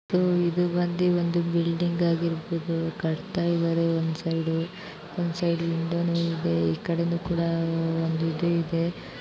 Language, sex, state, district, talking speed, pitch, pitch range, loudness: Kannada, female, Karnataka, Bijapur, 50 wpm, 170 Hz, 165-175 Hz, -26 LUFS